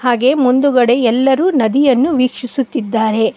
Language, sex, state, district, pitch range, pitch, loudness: Kannada, female, Karnataka, Koppal, 240-270 Hz, 255 Hz, -13 LUFS